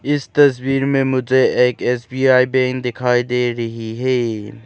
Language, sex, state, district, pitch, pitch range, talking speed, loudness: Hindi, male, Arunachal Pradesh, Lower Dibang Valley, 125 Hz, 120-130 Hz, 140 wpm, -17 LUFS